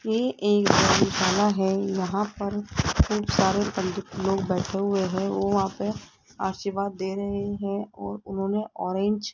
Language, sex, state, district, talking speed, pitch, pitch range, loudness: Hindi, female, Rajasthan, Jaipur, 155 wpm, 195 Hz, 190-205 Hz, -25 LUFS